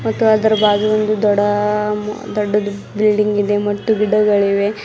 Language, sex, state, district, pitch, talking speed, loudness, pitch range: Kannada, female, Karnataka, Bidar, 210 Hz, 125 wpm, -16 LUFS, 205-215 Hz